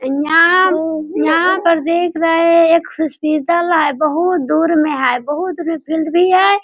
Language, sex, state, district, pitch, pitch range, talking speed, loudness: Hindi, female, Bihar, Sitamarhi, 330 Hz, 310-345 Hz, 145 wpm, -14 LUFS